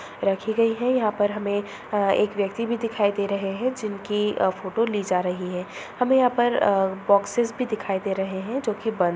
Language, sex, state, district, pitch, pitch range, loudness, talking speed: Hindi, female, Bihar, Jamui, 205 Hz, 195-230 Hz, -24 LUFS, 215 wpm